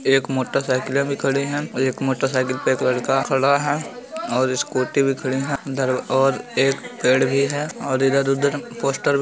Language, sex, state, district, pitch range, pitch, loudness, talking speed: Bhojpuri, male, Uttar Pradesh, Gorakhpur, 130-140 Hz, 135 Hz, -21 LUFS, 180 wpm